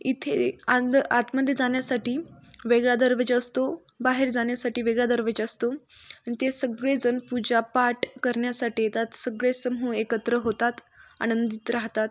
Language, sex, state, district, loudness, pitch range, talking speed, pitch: Marathi, female, Maharashtra, Sindhudurg, -25 LUFS, 235-255 Hz, 155 wpm, 245 Hz